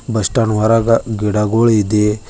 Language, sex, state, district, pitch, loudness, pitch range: Kannada, male, Karnataka, Bidar, 110 Hz, -14 LUFS, 105-115 Hz